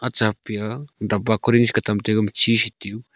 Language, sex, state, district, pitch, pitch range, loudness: Wancho, male, Arunachal Pradesh, Longding, 110 Hz, 105-120 Hz, -19 LUFS